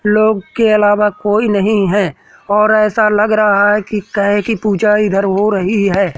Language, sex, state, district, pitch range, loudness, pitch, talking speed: Hindi, male, Madhya Pradesh, Katni, 200-215 Hz, -13 LUFS, 210 Hz, 185 wpm